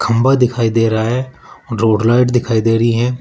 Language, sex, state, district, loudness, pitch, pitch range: Hindi, male, Rajasthan, Jaipur, -14 LUFS, 115 Hz, 115-125 Hz